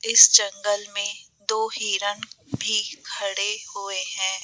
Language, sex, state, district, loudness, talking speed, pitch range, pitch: Hindi, female, Rajasthan, Jaipur, -22 LUFS, 120 wpm, 200-215 Hz, 205 Hz